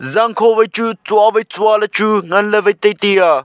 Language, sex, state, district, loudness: Wancho, male, Arunachal Pradesh, Longding, -13 LUFS